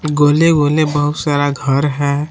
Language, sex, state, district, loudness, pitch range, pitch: Hindi, male, Jharkhand, Palamu, -14 LUFS, 145-150 Hz, 145 Hz